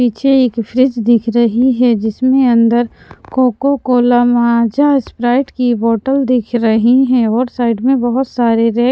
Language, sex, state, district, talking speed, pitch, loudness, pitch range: Hindi, female, Punjab, Pathankot, 155 wpm, 245 Hz, -13 LUFS, 235-260 Hz